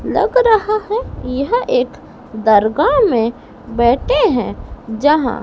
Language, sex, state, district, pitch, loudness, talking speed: Hindi, female, Madhya Pradesh, Dhar, 275 Hz, -15 LUFS, 110 wpm